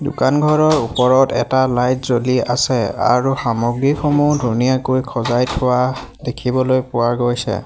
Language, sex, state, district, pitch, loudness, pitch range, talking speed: Assamese, male, Assam, Hailakandi, 130 Hz, -16 LUFS, 120-135 Hz, 110 wpm